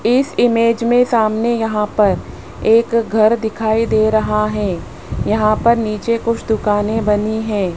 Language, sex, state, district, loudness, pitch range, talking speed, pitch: Hindi, female, Rajasthan, Jaipur, -16 LUFS, 210-230 Hz, 145 wpm, 220 Hz